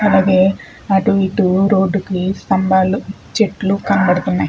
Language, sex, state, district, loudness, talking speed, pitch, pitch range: Telugu, female, Andhra Pradesh, Chittoor, -15 LUFS, 105 wpm, 195 Hz, 190-195 Hz